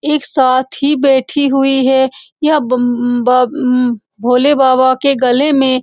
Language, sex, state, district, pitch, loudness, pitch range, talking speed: Hindi, female, Bihar, Saran, 265 Hz, -12 LUFS, 250-280 Hz, 175 wpm